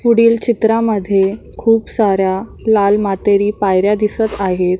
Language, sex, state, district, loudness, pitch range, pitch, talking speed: Marathi, female, Maharashtra, Mumbai Suburban, -14 LUFS, 195-225 Hz, 205 Hz, 110 wpm